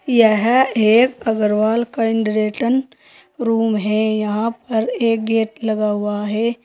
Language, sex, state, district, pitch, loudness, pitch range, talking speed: Hindi, female, Uttar Pradesh, Saharanpur, 225 Hz, -18 LUFS, 215-235 Hz, 115 wpm